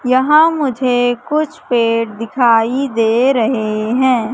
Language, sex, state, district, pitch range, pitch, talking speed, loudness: Hindi, female, Madhya Pradesh, Katni, 230-265 Hz, 245 Hz, 110 wpm, -14 LUFS